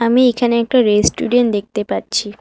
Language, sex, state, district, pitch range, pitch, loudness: Bengali, female, West Bengal, Alipurduar, 210-245 Hz, 235 Hz, -15 LUFS